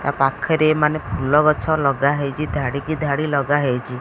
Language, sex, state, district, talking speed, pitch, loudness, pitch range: Odia, female, Odisha, Khordha, 150 wpm, 145 Hz, -19 LUFS, 135-155 Hz